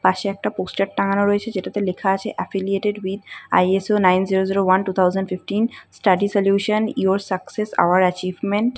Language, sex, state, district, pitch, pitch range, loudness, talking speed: Bengali, female, West Bengal, North 24 Parganas, 195 Hz, 185-205 Hz, -20 LUFS, 165 wpm